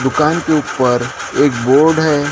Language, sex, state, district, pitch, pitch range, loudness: Hindi, male, Maharashtra, Gondia, 145 Hz, 130-155 Hz, -14 LUFS